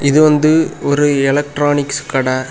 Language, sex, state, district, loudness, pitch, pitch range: Tamil, male, Tamil Nadu, Kanyakumari, -14 LUFS, 145 Hz, 140-150 Hz